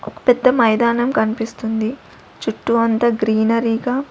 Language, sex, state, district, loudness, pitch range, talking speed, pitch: Telugu, female, Andhra Pradesh, Sri Satya Sai, -17 LUFS, 225-240 Hz, 115 wpm, 230 Hz